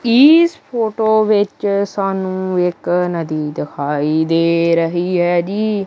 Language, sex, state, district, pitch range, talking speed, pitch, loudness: Punjabi, male, Punjab, Kapurthala, 170-210 Hz, 110 wpm, 185 Hz, -16 LUFS